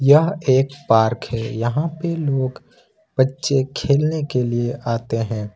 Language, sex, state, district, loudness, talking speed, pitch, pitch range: Hindi, male, Jharkhand, Ranchi, -20 LUFS, 140 wpm, 135 Hz, 120-150 Hz